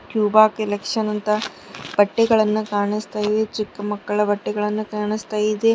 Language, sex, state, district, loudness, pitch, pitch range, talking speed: Kannada, female, Karnataka, Bidar, -21 LUFS, 210 Hz, 210-215 Hz, 115 wpm